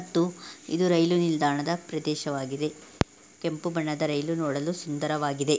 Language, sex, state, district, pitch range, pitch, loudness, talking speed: Kannada, female, Karnataka, Belgaum, 145-170 Hz, 155 Hz, -28 LUFS, 95 wpm